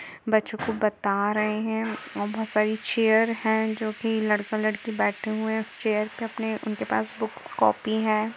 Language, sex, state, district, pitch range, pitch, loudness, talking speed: Hindi, female, Uttar Pradesh, Jalaun, 215-220 Hz, 220 Hz, -26 LUFS, 180 wpm